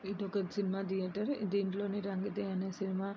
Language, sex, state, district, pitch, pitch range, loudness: Telugu, female, Andhra Pradesh, Srikakulam, 195 Hz, 190-200 Hz, -36 LUFS